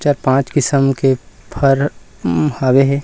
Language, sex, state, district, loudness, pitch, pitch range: Chhattisgarhi, male, Chhattisgarh, Rajnandgaon, -16 LUFS, 135 Hz, 130-140 Hz